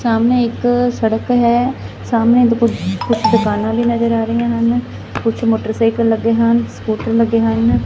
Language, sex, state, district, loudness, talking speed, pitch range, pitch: Punjabi, female, Punjab, Fazilka, -15 LUFS, 150 wpm, 225-235 Hz, 230 Hz